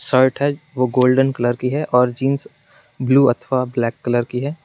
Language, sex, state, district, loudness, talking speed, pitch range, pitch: Hindi, male, Jharkhand, Garhwa, -18 LUFS, 165 wpm, 125-140 Hz, 130 Hz